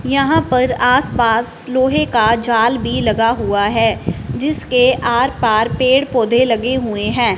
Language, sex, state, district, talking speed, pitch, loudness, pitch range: Hindi, female, Punjab, Fazilka, 140 wpm, 240 Hz, -15 LUFS, 225-260 Hz